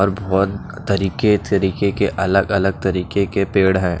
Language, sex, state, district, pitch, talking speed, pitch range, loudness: Hindi, male, Odisha, Nuapada, 100 Hz, 135 wpm, 95-100 Hz, -18 LUFS